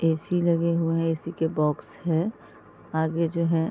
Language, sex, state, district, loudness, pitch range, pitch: Hindi, female, Uttar Pradesh, Varanasi, -26 LUFS, 160-170 Hz, 165 Hz